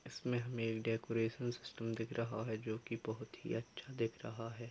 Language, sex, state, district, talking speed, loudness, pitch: Hindi, male, Bihar, Purnia, 205 wpm, -42 LUFS, 115 Hz